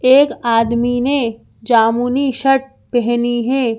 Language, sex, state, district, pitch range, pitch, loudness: Hindi, female, Madhya Pradesh, Bhopal, 235-265 Hz, 245 Hz, -15 LUFS